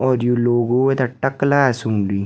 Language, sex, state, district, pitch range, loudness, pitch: Garhwali, female, Uttarakhand, Tehri Garhwal, 120-135 Hz, -18 LUFS, 125 Hz